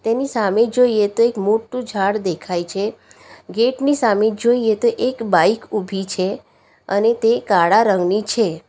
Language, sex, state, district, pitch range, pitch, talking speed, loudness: Gujarati, female, Gujarat, Valsad, 200-235 Hz, 220 Hz, 160 wpm, -18 LUFS